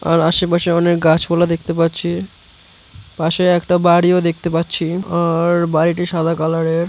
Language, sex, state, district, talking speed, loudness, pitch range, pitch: Bengali, male, West Bengal, Jhargram, 130 wpm, -15 LUFS, 165-175 Hz, 170 Hz